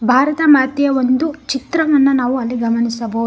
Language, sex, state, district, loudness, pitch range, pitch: Kannada, female, Karnataka, Koppal, -15 LUFS, 245-285 Hz, 265 Hz